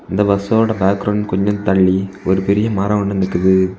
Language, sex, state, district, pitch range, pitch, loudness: Tamil, male, Tamil Nadu, Kanyakumari, 95-105 Hz, 100 Hz, -16 LUFS